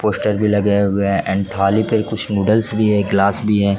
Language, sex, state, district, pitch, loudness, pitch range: Hindi, male, Jharkhand, Jamtara, 105 Hz, -17 LUFS, 100-105 Hz